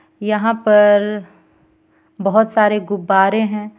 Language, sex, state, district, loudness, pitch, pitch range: Hindi, female, Jharkhand, Ranchi, -15 LUFS, 210 Hz, 205-215 Hz